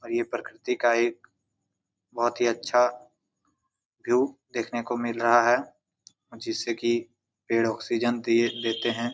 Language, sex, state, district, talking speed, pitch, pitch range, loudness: Hindi, male, Jharkhand, Jamtara, 140 wpm, 120 Hz, 115-120 Hz, -26 LUFS